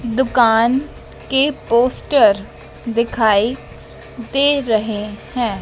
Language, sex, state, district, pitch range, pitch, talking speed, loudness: Hindi, female, Madhya Pradesh, Dhar, 220-260 Hz, 235 Hz, 75 wpm, -16 LUFS